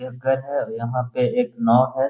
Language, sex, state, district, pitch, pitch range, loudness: Hindi, male, Bihar, Gaya, 130 Hz, 125-135 Hz, -21 LUFS